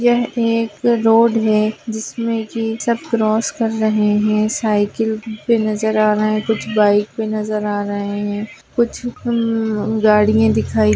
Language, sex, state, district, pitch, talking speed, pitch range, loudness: Hindi, female, Bihar, Madhepura, 220 Hz, 160 wpm, 210-230 Hz, -17 LUFS